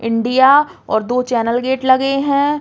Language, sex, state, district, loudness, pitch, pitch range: Bundeli, female, Uttar Pradesh, Hamirpur, -15 LUFS, 260 Hz, 235-275 Hz